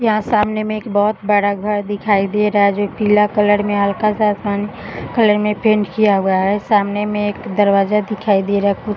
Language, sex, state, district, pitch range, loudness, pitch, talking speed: Hindi, female, Uttar Pradesh, Gorakhpur, 205-210 Hz, -16 LUFS, 210 Hz, 225 wpm